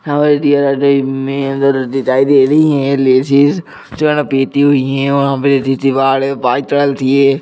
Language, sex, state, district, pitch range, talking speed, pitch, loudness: Hindi, male, Uttar Pradesh, Etah, 135-140 Hz, 50 wpm, 140 Hz, -12 LUFS